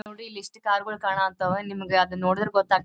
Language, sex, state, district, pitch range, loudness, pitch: Kannada, female, Karnataka, Dharwad, 190-210 Hz, -25 LUFS, 195 Hz